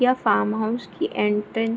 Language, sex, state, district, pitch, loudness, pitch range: Hindi, female, Bihar, Begusarai, 225 Hz, -23 LUFS, 210-235 Hz